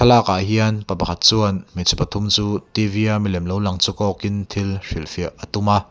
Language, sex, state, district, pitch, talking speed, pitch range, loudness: Mizo, male, Mizoram, Aizawl, 100 Hz, 225 wpm, 95-105 Hz, -19 LUFS